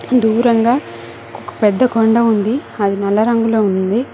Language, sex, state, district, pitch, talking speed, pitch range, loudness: Telugu, female, Telangana, Mahabubabad, 220 Hz, 130 wpm, 200-235 Hz, -14 LUFS